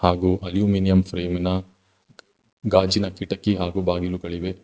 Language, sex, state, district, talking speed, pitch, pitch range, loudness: Kannada, male, Karnataka, Bangalore, 90 wpm, 95 Hz, 90-95 Hz, -22 LUFS